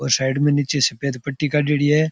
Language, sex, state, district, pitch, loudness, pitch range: Rajasthani, male, Rajasthan, Churu, 145 Hz, -19 LUFS, 135-150 Hz